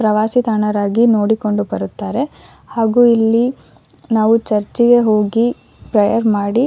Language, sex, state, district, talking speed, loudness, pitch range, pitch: Kannada, female, Karnataka, Shimoga, 90 wpm, -15 LUFS, 210-235 Hz, 220 Hz